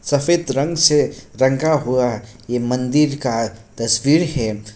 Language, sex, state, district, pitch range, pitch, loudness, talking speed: Hindi, male, Bihar, Kishanganj, 115-150 Hz, 130 Hz, -18 LUFS, 125 wpm